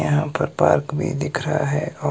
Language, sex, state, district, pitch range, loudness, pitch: Hindi, male, Himachal Pradesh, Shimla, 125-155 Hz, -21 LUFS, 150 Hz